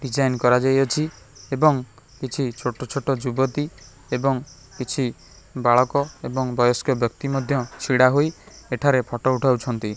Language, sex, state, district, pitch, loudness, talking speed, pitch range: Odia, male, Odisha, Khordha, 130 Hz, -22 LUFS, 115 wpm, 125-135 Hz